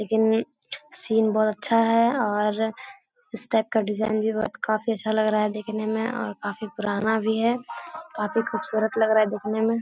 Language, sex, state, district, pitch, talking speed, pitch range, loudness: Hindi, female, Bihar, Jahanabad, 220 Hz, 190 wpm, 215-225 Hz, -24 LUFS